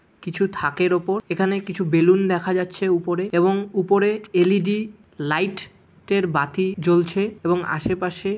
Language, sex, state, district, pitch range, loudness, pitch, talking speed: Bengali, male, West Bengal, Malda, 175-195 Hz, -21 LUFS, 185 Hz, 135 wpm